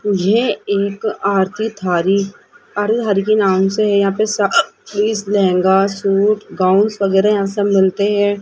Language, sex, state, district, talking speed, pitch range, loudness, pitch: Hindi, female, Rajasthan, Jaipur, 140 wpm, 195-210 Hz, -16 LUFS, 200 Hz